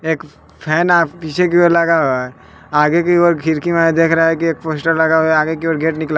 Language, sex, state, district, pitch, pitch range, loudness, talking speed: Hindi, male, Bihar, West Champaran, 160 Hz, 155-170 Hz, -14 LUFS, 240 wpm